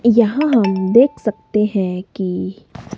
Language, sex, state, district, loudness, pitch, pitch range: Hindi, female, Himachal Pradesh, Shimla, -17 LUFS, 210 Hz, 185-235 Hz